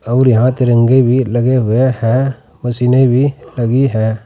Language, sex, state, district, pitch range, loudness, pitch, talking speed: Hindi, male, Uttar Pradesh, Saharanpur, 120-130 Hz, -13 LUFS, 125 Hz, 155 wpm